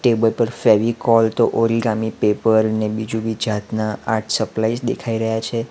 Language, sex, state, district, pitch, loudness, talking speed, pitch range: Gujarati, male, Gujarat, Valsad, 110 Hz, -19 LUFS, 145 wpm, 110-115 Hz